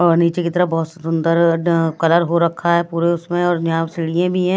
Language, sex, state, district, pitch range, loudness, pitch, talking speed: Hindi, female, Delhi, New Delhi, 165-175 Hz, -17 LUFS, 170 Hz, 225 wpm